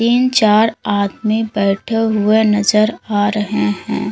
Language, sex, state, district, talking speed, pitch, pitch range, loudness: Hindi, female, Uttar Pradesh, Lalitpur, 130 wpm, 215 Hz, 205-220 Hz, -15 LUFS